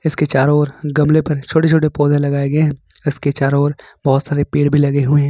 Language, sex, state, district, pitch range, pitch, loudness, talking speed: Hindi, male, Jharkhand, Ranchi, 140-150 Hz, 145 Hz, -15 LUFS, 235 wpm